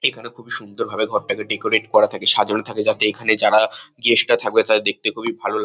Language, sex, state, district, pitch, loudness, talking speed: Bengali, male, West Bengal, Kolkata, 120 Hz, -17 LUFS, 210 wpm